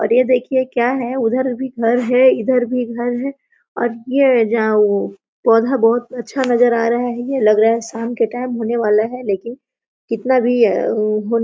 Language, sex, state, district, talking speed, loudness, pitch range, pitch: Hindi, female, Jharkhand, Sahebganj, 190 wpm, -16 LUFS, 230-255 Hz, 240 Hz